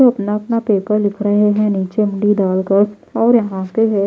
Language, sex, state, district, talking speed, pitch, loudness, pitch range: Hindi, female, Bihar, Patna, 190 wpm, 210 Hz, -16 LUFS, 200-215 Hz